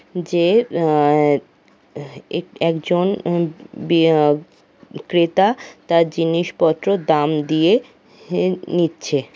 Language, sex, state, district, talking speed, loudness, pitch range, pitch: Bengali, female, West Bengal, Kolkata, 95 wpm, -18 LUFS, 155-175 Hz, 165 Hz